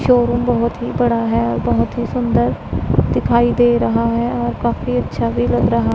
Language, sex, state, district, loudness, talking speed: Hindi, female, Punjab, Pathankot, -17 LUFS, 180 wpm